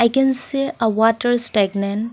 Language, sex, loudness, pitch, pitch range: English, female, -17 LUFS, 235 Hz, 220-260 Hz